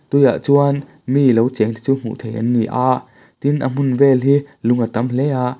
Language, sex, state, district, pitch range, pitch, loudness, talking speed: Mizo, male, Mizoram, Aizawl, 120-140 Hz, 130 Hz, -17 LUFS, 245 wpm